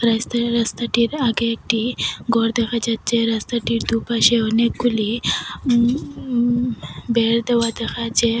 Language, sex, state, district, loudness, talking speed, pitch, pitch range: Bengali, female, Assam, Hailakandi, -19 LUFS, 95 wpm, 235 Hz, 230-235 Hz